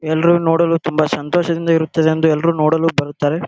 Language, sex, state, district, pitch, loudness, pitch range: Kannada, male, Karnataka, Gulbarga, 165 Hz, -16 LUFS, 155-170 Hz